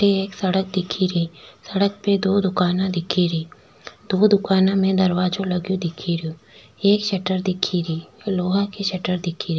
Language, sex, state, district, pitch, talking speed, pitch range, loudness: Rajasthani, female, Rajasthan, Nagaur, 185 Hz, 140 wpm, 180-195 Hz, -21 LUFS